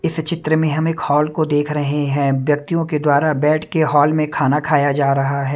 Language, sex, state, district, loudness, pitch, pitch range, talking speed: Hindi, male, Maharashtra, Mumbai Suburban, -17 LUFS, 150 Hz, 145-155 Hz, 235 wpm